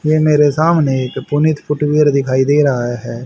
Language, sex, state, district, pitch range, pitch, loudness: Hindi, male, Haryana, Rohtak, 130-150 Hz, 145 Hz, -14 LUFS